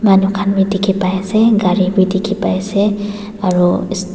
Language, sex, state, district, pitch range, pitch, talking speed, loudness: Nagamese, female, Nagaland, Dimapur, 190-205 Hz, 195 Hz, 145 wpm, -15 LUFS